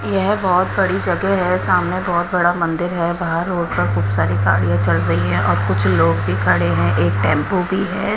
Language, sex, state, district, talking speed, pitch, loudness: Hindi, female, Odisha, Nuapada, 215 wpm, 105 Hz, -17 LUFS